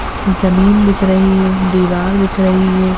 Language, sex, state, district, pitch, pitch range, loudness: Hindi, female, Chhattisgarh, Rajnandgaon, 190 Hz, 185-195 Hz, -12 LUFS